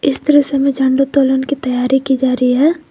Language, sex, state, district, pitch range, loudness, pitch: Hindi, female, Jharkhand, Garhwa, 265-285 Hz, -14 LUFS, 270 Hz